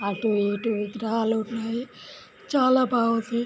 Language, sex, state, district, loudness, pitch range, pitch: Telugu, female, Telangana, Nalgonda, -25 LUFS, 220-235 Hz, 225 Hz